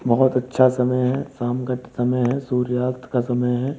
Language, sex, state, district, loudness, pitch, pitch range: Hindi, male, Uttar Pradesh, Budaun, -21 LUFS, 125 Hz, 125-130 Hz